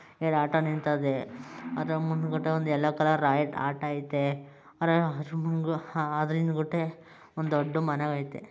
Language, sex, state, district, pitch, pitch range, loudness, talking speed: Kannada, male, Karnataka, Mysore, 155 Hz, 145-160 Hz, -29 LUFS, 140 wpm